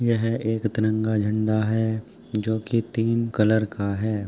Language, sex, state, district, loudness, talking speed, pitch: Hindi, male, Uttar Pradesh, Jyotiba Phule Nagar, -24 LUFS, 140 wpm, 110 Hz